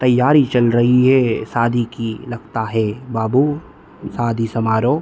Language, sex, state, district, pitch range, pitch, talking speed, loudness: Hindi, male, Bihar, East Champaran, 110-125 Hz, 120 Hz, 145 wpm, -17 LUFS